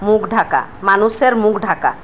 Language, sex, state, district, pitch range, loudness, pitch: Bengali, female, Assam, Hailakandi, 210-220 Hz, -15 LUFS, 215 Hz